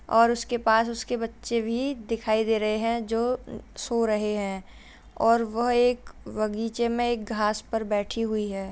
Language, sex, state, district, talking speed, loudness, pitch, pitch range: Hindi, female, Uttar Pradesh, Jalaun, 170 wpm, -26 LUFS, 230 Hz, 215-235 Hz